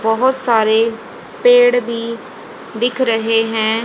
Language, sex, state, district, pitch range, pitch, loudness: Hindi, female, Haryana, Jhajjar, 225-255 Hz, 230 Hz, -15 LUFS